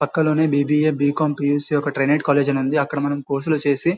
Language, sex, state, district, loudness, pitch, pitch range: Telugu, male, Karnataka, Bellary, -20 LUFS, 145 Hz, 140-155 Hz